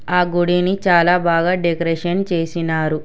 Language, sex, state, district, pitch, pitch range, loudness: Telugu, male, Telangana, Hyderabad, 175 Hz, 165-180 Hz, -17 LUFS